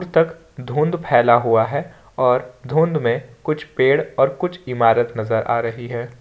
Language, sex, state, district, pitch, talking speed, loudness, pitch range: Hindi, male, Jharkhand, Ranchi, 125 Hz, 165 wpm, -19 LUFS, 120-155 Hz